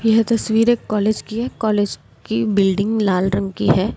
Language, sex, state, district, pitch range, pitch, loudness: Hindi, female, Delhi, New Delhi, 190-225 Hz, 210 Hz, -18 LUFS